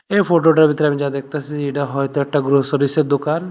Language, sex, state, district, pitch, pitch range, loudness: Bengali, male, Tripura, West Tripura, 145 Hz, 140-155 Hz, -17 LUFS